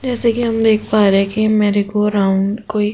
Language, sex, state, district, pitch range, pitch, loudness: Hindi, female, Uttar Pradesh, Jyotiba Phule Nagar, 205-220 Hz, 210 Hz, -15 LUFS